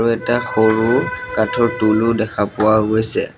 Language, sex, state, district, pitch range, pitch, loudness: Assamese, male, Assam, Sonitpur, 110-120 Hz, 110 Hz, -16 LUFS